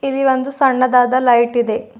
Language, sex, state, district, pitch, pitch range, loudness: Kannada, female, Karnataka, Bidar, 255 Hz, 240-270 Hz, -15 LUFS